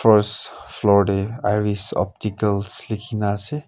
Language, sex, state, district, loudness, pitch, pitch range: Nagamese, male, Nagaland, Kohima, -21 LUFS, 105 Hz, 100-110 Hz